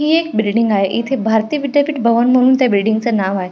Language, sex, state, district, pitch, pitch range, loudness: Marathi, female, Maharashtra, Pune, 235 Hz, 215-270 Hz, -15 LUFS